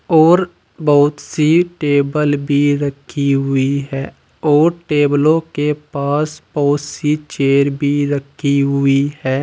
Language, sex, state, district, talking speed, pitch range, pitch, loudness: Hindi, male, Uttar Pradesh, Saharanpur, 120 wpm, 140-150 Hz, 145 Hz, -16 LUFS